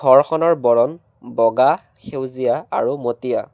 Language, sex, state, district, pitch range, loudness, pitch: Assamese, male, Assam, Kamrup Metropolitan, 120-140 Hz, -18 LUFS, 125 Hz